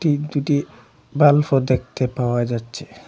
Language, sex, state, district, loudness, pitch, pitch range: Bengali, male, Assam, Hailakandi, -20 LUFS, 135 Hz, 120-145 Hz